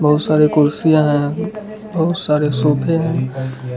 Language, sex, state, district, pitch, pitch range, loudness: Hindi, male, Gujarat, Valsad, 150 Hz, 145-165 Hz, -16 LUFS